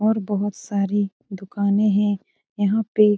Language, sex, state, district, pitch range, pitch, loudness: Hindi, female, Bihar, Lakhisarai, 200-210 Hz, 205 Hz, -22 LUFS